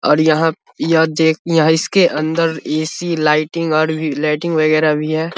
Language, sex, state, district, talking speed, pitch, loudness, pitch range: Hindi, male, Bihar, Vaishali, 165 wpm, 160 Hz, -15 LUFS, 155-165 Hz